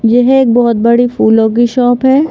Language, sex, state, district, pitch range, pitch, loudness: Hindi, female, Madhya Pradesh, Bhopal, 230-255 Hz, 240 Hz, -9 LUFS